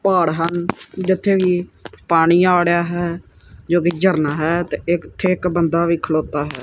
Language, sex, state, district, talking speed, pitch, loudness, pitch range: Punjabi, male, Punjab, Kapurthala, 170 wpm, 175 Hz, -18 LUFS, 165-180 Hz